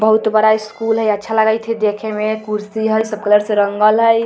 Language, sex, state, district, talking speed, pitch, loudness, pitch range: Hindi, female, Bihar, Vaishali, 240 wpm, 215 Hz, -15 LUFS, 210-220 Hz